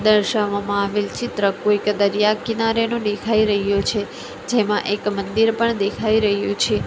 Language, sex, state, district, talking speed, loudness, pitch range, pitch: Gujarati, female, Gujarat, Valsad, 140 wpm, -20 LUFS, 200-220 Hz, 210 Hz